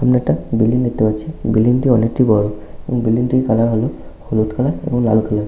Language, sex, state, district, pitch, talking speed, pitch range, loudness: Bengali, male, West Bengal, Malda, 115 Hz, 210 wpm, 110-125 Hz, -16 LUFS